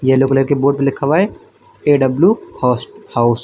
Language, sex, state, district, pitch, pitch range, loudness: Hindi, male, Uttar Pradesh, Lucknow, 140 Hz, 130-180 Hz, -15 LUFS